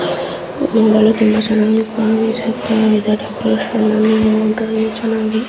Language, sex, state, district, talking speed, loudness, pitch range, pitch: Kannada, female, Karnataka, Raichur, 65 wpm, -14 LUFS, 215-220 Hz, 220 Hz